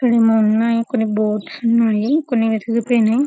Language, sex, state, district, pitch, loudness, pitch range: Telugu, female, Telangana, Karimnagar, 230 Hz, -17 LUFS, 220-240 Hz